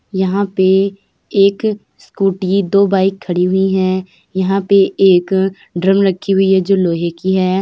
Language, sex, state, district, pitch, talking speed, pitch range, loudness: Hindi, female, Uttar Pradesh, Jyotiba Phule Nagar, 190 Hz, 155 wpm, 185-195 Hz, -14 LUFS